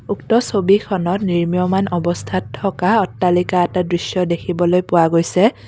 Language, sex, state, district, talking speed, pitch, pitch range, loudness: Assamese, female, Assam, Kamrup Metropolitan, 115 wpm, 180 Hz, 175-195 Hz, -17 LUFS